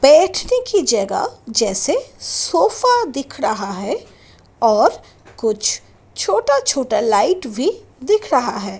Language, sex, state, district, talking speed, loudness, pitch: Hindi, female, Delhi, New Delhi, 110 wpm, -18 LUFS, 285 Hz